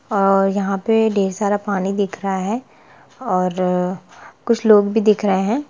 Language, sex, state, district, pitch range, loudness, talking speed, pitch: Hindi, female, Jharkhand, Jamtara, 190-220 Hz, -18 LUFS, 170 wpm, 200 Hz